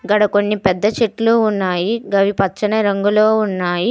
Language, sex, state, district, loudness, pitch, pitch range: Telugu, female, Telangana, Hyderabad, -16 LUFS, 210 Hz, 195-215 Hz